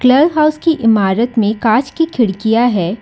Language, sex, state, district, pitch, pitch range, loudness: Hindi, female, Karnataka, Bangalore, 235 Hz, 220-295 Hz, -13 LUFS